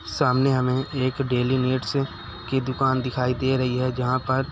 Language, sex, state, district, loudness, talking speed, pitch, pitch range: Hindi, male, Chhattisgarh, Raigarh, -23 LUFS, 185 wpm, 130 Hz, 125-135 Hz